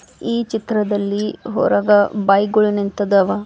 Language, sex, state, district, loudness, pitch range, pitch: Kannada, female, Karnataka, Bidar, -17 LUFS, 200-215 Hz, 205 Hz